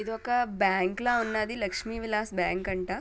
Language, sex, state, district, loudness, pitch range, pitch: Telugu, female, Telangana, Nalgonda, -29 LUFS, 190-225 Hz, 215 Hz